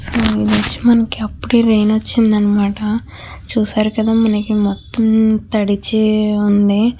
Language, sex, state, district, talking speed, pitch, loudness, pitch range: Telugu, female, Andhra Pradesh, Chittoor, 105 wpm, 215 Hz, -15 LUFS, 205-220 Hz